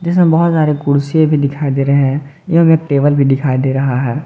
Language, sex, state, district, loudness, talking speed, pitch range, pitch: Hindi, male, Jharkhand, Garhwa, -13 LUFS, 225 wpm, 135-160 Hz, 145 Hz